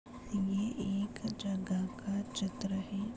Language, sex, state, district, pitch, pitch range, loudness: Hindi, female, Maharashtra, Chandrapur, 200 Hz, 195-215 Hz, -37 LUFS